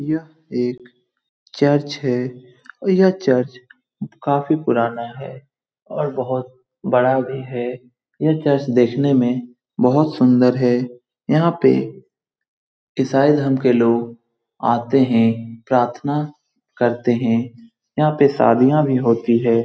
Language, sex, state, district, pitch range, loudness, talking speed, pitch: Hindi, male, Bihar, Lakhisarai, 120-140 Hz, -18 LUFS, 125 wpm, 125 Hz